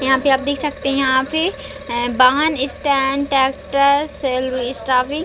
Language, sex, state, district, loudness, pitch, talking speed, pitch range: Hindi, female, Chhattisgarh, Raigarh, -17 LUFS, 275 Hz, 170 wpm, 260-285 Hz